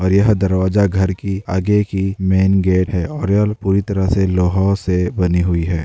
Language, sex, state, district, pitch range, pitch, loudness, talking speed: Hindi, male, Bihar, Darbhanga, 90-100 Hz, 95 Hz, -16 LUFS, 105 wpm